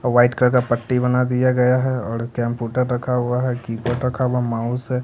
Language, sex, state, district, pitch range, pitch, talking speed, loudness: Hindi, male, Bihar, Katihar, 120-125 Hz, 125 Hz, 225 wpm, -20 LUFS